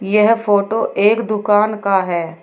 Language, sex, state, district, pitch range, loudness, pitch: Hindi, female, Uttar Pradesh, Shamli, 195-215 Hz, -15 LUFS, 210 Hz